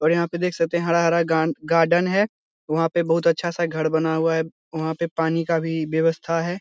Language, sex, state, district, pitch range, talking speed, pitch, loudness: Hindi, male, Bihar, Lakhisarai, 160-170 Hz, 225 wpm, 165 Hz, -22 LUFS